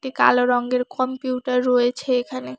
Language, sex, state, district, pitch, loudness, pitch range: Bengali, female, West Bengal, Alipurduar, 250 Hz, -21 LUFS, 245-255 Hz